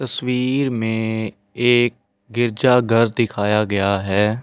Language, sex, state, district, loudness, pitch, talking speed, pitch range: Hindi, male, Delhi, New Delhi, -19 LUFS, 115 Hz, 110 wpm, 105-120 Hz